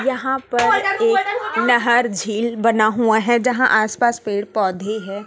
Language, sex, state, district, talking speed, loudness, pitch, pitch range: Hindi, female, Chhattisgarh, Raipur, 160 wpm, -18 LUFS, 235 Hz, 215-255 Hz